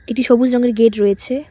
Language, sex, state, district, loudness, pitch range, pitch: Bengali, female, West Bengal, Cooch Behar, -15 LUFS, 230-255 Hz, 245 Hz